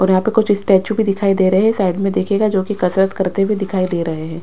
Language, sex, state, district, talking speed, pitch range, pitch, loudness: Hindi, female, Chhattisgarh, Raipur, 285 wpm, 185-205 Hz, 195 Hz, -16 LUFS